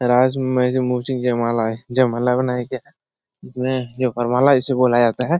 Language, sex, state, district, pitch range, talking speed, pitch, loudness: Hindi, male, Uttar Pradesh, Etah, 120-130 Hz, 135 wpm, 125 Hz, -19 LUFS